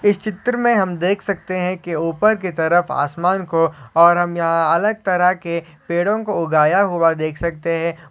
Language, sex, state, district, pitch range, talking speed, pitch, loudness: Hindi, male, Maharashtra, Solapur, 165-190 Hz, 190 wpm, 175 Hz, -18 LUFS